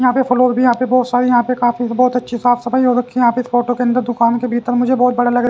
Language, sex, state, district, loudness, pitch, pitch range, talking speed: Hindi, male, Haryana, Jhajjar, -15 LUFS, 245 Hz, 245-250 Hz, 350 wpm